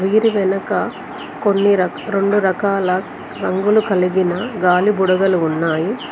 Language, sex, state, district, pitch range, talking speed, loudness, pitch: Telugu, female, Telangana, Mahabubabad, 185-205 Hz, 110 wpm, -17 LUFS, 190 Hz